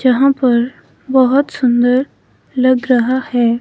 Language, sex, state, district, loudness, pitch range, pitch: Hindi, female, Himachal Pradesh, Shimla, -14 LUFS, 245-265 Hz, 255 Hz